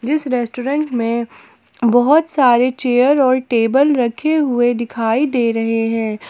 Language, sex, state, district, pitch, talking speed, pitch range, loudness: Hindi, female, Jharkhand, Palamu, 245 Hz, 135 wpm, 230-275 Hz, -16 LUFS